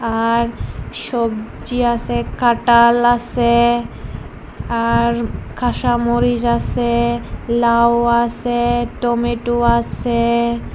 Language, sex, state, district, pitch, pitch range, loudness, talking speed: Bengali, female, Tripura, West Tripura, 235 Hz, 235-240 Hz, -17 LUFS, 75 wpm